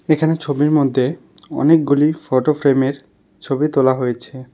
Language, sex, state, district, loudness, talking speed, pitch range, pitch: Bengali, male, West Bengal, Alipurduar, -17 LUFS, 120 wpm, 130-155 Hz, 140 Hz